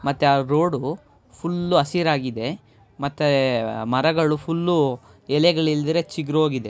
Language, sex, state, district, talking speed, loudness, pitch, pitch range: Kannada, female, Karnataka, Raichur, 105 wpm, -21 LUFS, 145 Hz, 130-160 Hz